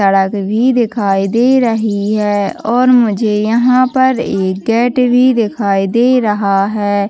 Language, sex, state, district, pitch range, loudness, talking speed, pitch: Hindi, female, Chhattisgarh, Bastar, 200-245 Hz, -12 LUFS, 145 wpm, 220 Hz